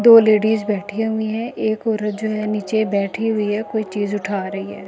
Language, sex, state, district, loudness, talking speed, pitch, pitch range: Hindi, female, Delhi, New Delhi, -20 LUFS, 220 wpm, 215 Hz, 205-220 Hz